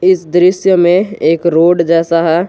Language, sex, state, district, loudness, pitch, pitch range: Hindi, male, Jharkhand, Garhwa, -11 LUFS, 175 Hz, 165-185 Hz